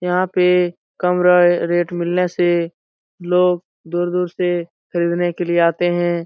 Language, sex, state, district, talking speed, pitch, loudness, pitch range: Hindi, male, Bihar, Supaul, 145 wpm, 175 Hz, -18 LUFS, 175-180 Hz